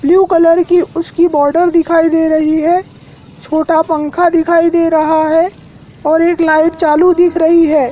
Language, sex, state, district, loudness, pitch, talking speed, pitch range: Hindi, male, Madhya Pradesh, Dhar, -11 LUFS, 330 Hz, 165 wpm, 315-340 Hz